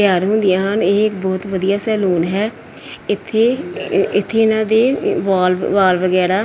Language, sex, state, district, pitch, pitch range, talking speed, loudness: Punjabi, female, Punjab, Pathankot, 195 Hz, 185-220 Hz, 150 wpm, -16 LUFS